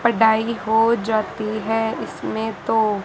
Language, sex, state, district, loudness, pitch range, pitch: Hindi, male, Rajasthan, Bikaner, -21 LUFS, 215-225 Hz, 220 Hz